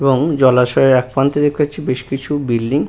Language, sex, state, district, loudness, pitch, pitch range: Bengali, male, West Bengal, Purulia, -15 LUFS, 135 Hz, 130-145 Hz